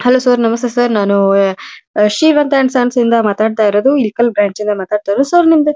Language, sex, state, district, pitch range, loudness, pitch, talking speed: Kannada, female, Karnataka, Dharwad, 210-260 Hz, -12 LUFS, 235 Hz, 210 wpm